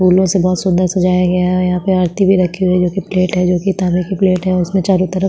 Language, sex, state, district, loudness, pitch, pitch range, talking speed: Hindi, female, Chhattisgarh, Sukma, -14 LUFS, 185 Hz, 180-190 Hz, 320 wpm